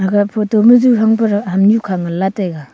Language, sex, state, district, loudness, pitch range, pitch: Wancho, female, Arunachal Pradesh, Longding, -13 LUFS, 190-220 Hz, 205 Hz